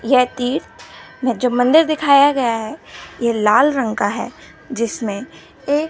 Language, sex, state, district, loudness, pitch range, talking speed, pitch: Hindi, female, Gujarat, Gandhinagar, -17 LUFS, 230-280 Hz, 150 wpm, 250 Hz